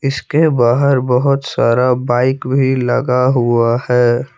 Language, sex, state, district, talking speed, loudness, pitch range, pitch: Hindi, male, Jharkhand, Palamu, 125 wpm, -14 LUFS, 120-135 Hz, 125 Hz